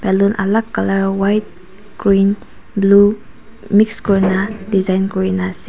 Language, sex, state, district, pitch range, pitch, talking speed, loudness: Nagamese, female, Nagaland, Kohima, 190-210 Hz, 200 Hz, 150 wpm, -15 LUFS